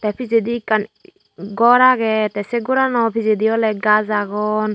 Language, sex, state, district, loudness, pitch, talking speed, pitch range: Chakma, female, Tripura, Unakoti, -17 LUFS, 220 Hz, 150 wpm, 210-235 Hz